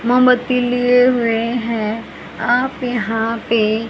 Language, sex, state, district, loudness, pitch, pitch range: Hindi, male, Haryana, Charkhi Dadri, -16 LUFS, 240 Hz, 225-250 Hz